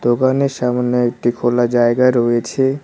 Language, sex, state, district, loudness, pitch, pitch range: Bengali, male, West Bengal, Cooch Behar, -16 LUFS, 120 Hz, 120-130 Hz